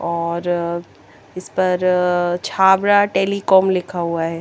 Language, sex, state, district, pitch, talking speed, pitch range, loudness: Hindi, female, Chandigarh, Chandigarh, 180 Hz, 120 wpm, 170-190 Hz, -17 LUFS